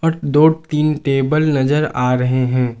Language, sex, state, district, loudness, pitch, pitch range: Hindi, male, Jharkhand, Garhwa, -16 LUFS, 145 Hz, 130-155 Hz